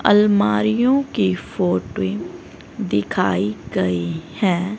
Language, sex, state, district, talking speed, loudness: Hindi, female, Haryana, Rohtak, 75 wpm, -20 LUFS